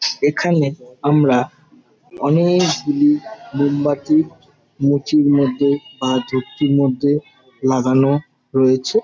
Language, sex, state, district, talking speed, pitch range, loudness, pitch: Bengali, male, West Bengal, Jalpaiguri, 85 wpm, 130-155 Hz, -17 LUFS, 145 Hz